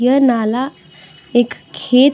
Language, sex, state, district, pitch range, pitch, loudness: Hindi, female, Uttar Pradesh, Budaun, 240-270 Hz, 255 Hz, -16 LUFS